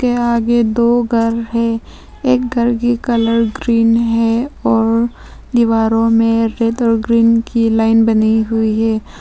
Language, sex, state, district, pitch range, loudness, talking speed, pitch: Hindi, female, Arunachal Pradesh, Lower Dibang Valley, 225-235 Hz, -14 LUFS, 145 wpm, 230 Hz